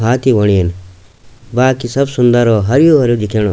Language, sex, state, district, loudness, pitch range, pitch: Garhwali, male, Uttarakhand, Tehri Garhwal, -12 LUFS, 105-130 Hz, 120 Hz